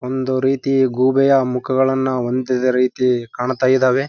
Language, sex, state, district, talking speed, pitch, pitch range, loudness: Kannada, male, Karnataka, Raichur, 130 wpm, 130 Hz, 125-130 Hz, -17 LUFS